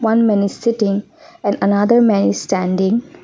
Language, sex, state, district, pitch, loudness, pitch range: English, female, Assam, Kamrup Metropolitan, 205 Hz, -16 LUFS, 195-230 Hz